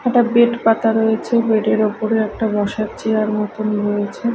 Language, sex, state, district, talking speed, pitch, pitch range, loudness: Bengali, female, Odisha, Khordha, 165 wpm, 220 Hz, 215-230 Hz, -17 LUFS